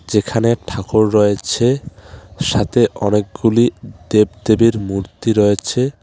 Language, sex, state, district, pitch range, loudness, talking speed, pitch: Bengali, male, West Bengal, Alipurduar, 100-115 Hz, -16 LUFS, 80 wpm, 105 Hz